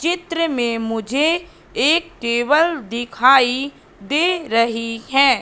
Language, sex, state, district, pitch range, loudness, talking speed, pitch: Hindi, female, Madhya Pradesh, Katni, 235-325 Hz, -18 LUFS, 100 wpm, 270 Hz